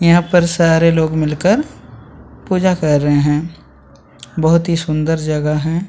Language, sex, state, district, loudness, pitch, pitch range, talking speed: Hindi, male, Chhattisgarh, Sukma, -15 LUFS, 160 Hz, 150-170 Hz, 145 wpm